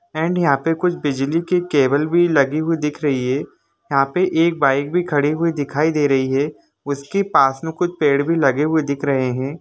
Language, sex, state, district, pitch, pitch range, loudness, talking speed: Hindi, male, Jharkhand, Jamtara, 150 Hz, 140-165 Hz, -18 LUFS, 220 wpm